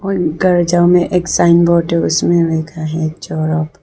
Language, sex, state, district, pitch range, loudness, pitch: Hindi, female, Arunachal Pradesh, Lower Dibang Valley, 160-175 Hz, -14 LUFS, 170 Hz